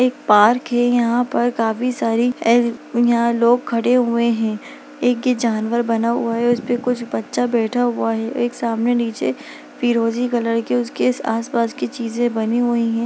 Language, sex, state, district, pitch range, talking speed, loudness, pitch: Hindi, female, Bihar, Darbhanga, 230-245 Hz, 180 wpm, -18 LUFS, 235 Hz